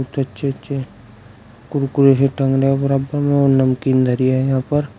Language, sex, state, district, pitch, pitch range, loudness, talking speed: Hindi, male, Uttar Pradesh, Shamli, 135 Hz, 130-140 Hz, -17 LUFS, 155 wpm